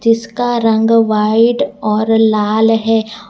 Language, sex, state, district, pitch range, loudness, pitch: Hindi, female, Gujarat, Valsad, 220-230 Hz, -13 LUFS, 225 Hz